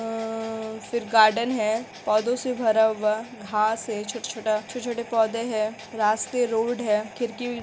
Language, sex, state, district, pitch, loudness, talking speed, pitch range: Hindi, female, Bihar, Kishanganj, 225 Hz, -25 LUFS, 150 wpm, 215-235 Hz